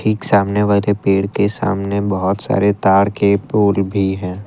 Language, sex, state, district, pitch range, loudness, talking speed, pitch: Hindi, male, Assam, Kamrup Metropolitan, 100-105 Hz, -16 LUFS, 175 wpm, 100 Hz